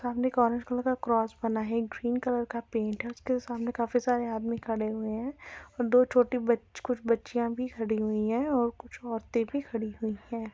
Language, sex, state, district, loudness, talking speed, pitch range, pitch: Hindi, female, Chhattisgarh, Rajnandgaon, -30 LUFS, 220 wpm, 225-245 Hz, 235 Hz